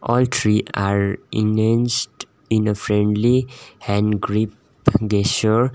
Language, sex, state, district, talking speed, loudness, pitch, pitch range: English, male, Sikkim, Gangtok, 95 wpm, -19 LUFS, 110 Hz, 105-120 Hz